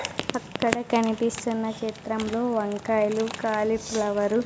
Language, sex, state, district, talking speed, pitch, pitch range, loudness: Telugu, female, Andhra Pradesh, Sri Satya Sai, 80 wpm, 220 Hz, 215-230 Hz, -26 LUFS